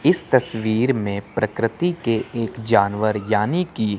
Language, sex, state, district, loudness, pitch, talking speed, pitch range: Hindi, male, Chandigarh, Chandigarh, -21 LUFS, 115 Hz, 120 wpm, 105-120 Hz